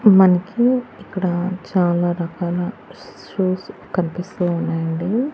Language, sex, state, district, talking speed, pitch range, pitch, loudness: Telugu, female, Andhra Pradesh, Annamaya, 80 wpm, 175-195 Hz, 180 Hz, -20 LUFS